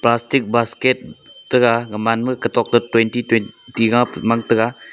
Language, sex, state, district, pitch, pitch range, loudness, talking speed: Wancho, male, Arunachal Pradesh, Longding, 115 Hz, 115-120 Hz, -17 LUFS, 145 wpm